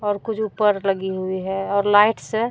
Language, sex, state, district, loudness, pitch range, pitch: Hindi, female, Bihar, Katihar, -20 LUFS, 190-215 Hz, 205 Hz